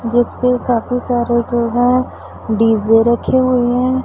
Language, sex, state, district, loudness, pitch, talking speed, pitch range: Hindi, female, Punjab, Pathankot, -15 LUFS, 240 Hz, 150 wpm, 235-250 Hz